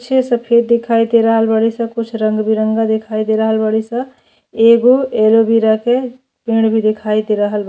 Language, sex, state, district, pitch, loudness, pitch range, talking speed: Bhojpuri, female, Uttar Pradesh, Deoria, 225 Hz, -14 LUFS, 220-235 Hz, 195 wpm